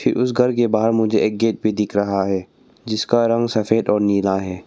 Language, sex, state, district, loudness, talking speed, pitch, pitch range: Hindi, male, Arunachal Pradesh, Longding, -19 LUFS, 220 wpm, 110 Hz, 100-115 Hz